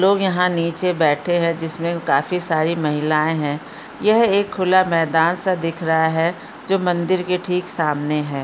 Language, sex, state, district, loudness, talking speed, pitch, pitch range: Hindi, female, Uttar Pradesh, Gorakhpur, -19 LUFS, 170 wpm, 170 Hz, 160-185 Hz